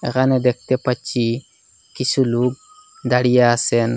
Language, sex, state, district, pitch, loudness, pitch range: Bengali, male, Assam, Hailakandi, 125 Hz, -18 LUFS, 120-130 Hz